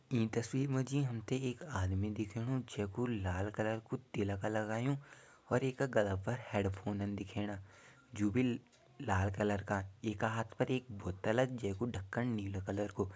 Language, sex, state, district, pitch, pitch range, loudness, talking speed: Garhwali, male, Uttarakhand, Tehri Garhwal, 110 Hz, 100-125 Hz, -38 LUFS, 165 wpm